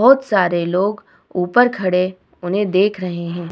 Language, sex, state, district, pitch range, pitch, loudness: Hindi, female, Bihar, Vaishali, 180-205 Hz, 185 Hz, -18 LUFS